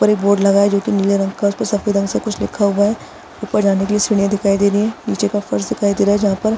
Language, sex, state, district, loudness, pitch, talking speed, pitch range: Hindi, female, Chhattisgarh, Bastar, -16 LUFS, 205 Hz, 345 wpm, 200-210 Hz